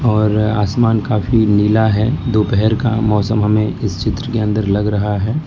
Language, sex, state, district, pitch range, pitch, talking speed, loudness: Hindi, male, Gujarat, Valsad, 105-110 Hz, 105 Hz, 175 wpm, -15 LUFS